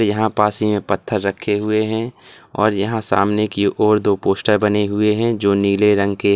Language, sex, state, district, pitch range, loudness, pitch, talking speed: Hindi, male, Uttar Pradesh, Lalitpur, 100-105 Hz, -17 LUFS, 105 Hz, 215 wpm